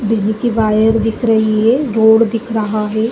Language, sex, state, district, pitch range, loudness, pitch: Hindi, female, Uttar Pradesh, Jalaun, 215-225 Hz, -14 LUFS, 220 Hz